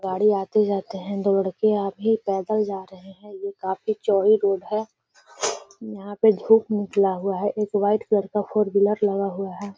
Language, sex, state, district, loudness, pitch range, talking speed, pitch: Hindi, female, Bihar, Gaya, -22 LUFS, 195-210 Hz, 185 wpm, 205 Hz